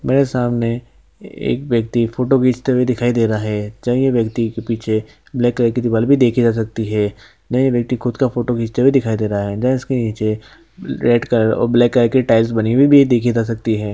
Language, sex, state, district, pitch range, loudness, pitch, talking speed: Hindi, male, Chhattisgarh, Sukma, 110-125 Hz, -16 LUFS, 120 Hz, 230 wpm